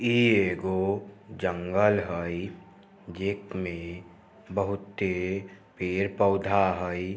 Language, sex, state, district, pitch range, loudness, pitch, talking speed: Maithili, male, Bihar, Samastipur, 90-100 Hz, -28 LUFS, 95 Hz, 75 wpm